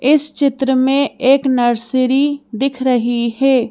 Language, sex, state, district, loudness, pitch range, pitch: Hindi, female, Madhya Pradesh, Bhopal, -15 LUFS, 245-275 Hz, 265 Hz